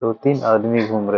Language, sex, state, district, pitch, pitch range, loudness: Hindi, male, Bihar, Begusarai, 115 Hz, 110-115 Hz, -18 LUFS